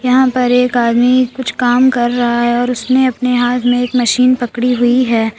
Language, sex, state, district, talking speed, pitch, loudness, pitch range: Hindi, female, Uttar Pradesh, Lalitpur, 210 wpm, 245 Hz, -13 LUFS, 240-255 Hz